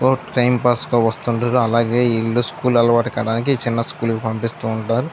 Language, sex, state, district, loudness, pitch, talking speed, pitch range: Telugu, male, Andhra Pradesh, Anantapur, -18 LUFS, 120 Hz, 175 wpm, 115-125 Hz